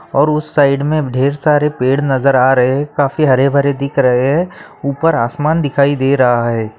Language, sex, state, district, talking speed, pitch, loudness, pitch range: Bhojpuri, male, Bihar, Saran, 195 wpm, 140 Hz, -13 LUFS, 130-150 Hz